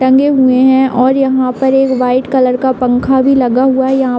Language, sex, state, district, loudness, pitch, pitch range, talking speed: Hindi, female, Uttar Pradesh, Hamirpur, -11 LUFS, 260 Hz, 255-265 Hz, 245 wpm